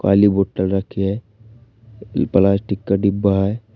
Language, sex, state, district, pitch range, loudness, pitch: Hindi, male, Uttar Pradesh, Shamli, 100-110 Hz, -18 LUFS, 100 Hz